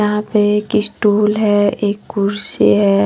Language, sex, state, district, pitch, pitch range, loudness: Hindi, female, Maharashtra, Washim, 205 Hz, 200-210 Hz, -15 LUFS